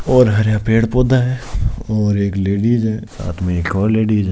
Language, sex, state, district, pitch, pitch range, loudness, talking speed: Marwari, male, Rajasthan, Nagaur, 110 Hz, 100-115 Hz, -16 LUFS, 210 wpm